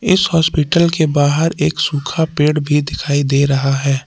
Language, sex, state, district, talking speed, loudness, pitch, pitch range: Hindi, male, Jharkhand, Palamu, 175 wpm, -15 LUFS, 150 Hz, 140-160 Hz